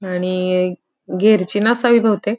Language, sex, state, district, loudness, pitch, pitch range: Marathi, female, Maharashtra, Pune, -16 LUFS, 205 Hz, 185-230 Hz